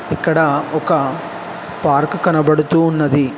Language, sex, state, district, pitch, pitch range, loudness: Telugu, male, Telangana, Hyderabad, 155 Hz, 145-165 Hz, -16 LUFS